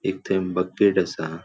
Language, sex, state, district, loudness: Konkani, male, Goa, North and South Goa, -23 LUFS